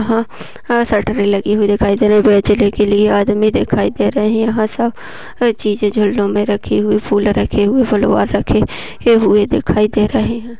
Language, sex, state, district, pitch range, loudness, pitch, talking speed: Hindi, female, Maharashtra, Dhule, 205-225 Hz, -14 LUFS, 210 Hz, 175 wpm